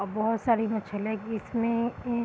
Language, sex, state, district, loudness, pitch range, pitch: Hindi, female, Bihar, Muzaffarpur, -29 LUFS, 215-230 Hz, 225 Hz